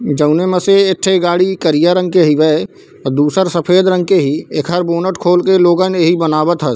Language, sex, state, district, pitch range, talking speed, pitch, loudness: Chhattisgarhi, male, Chhattisgarh, Bilaspur, 155-185 Hz, 215 wpm, 175 Hz, -12 LUFS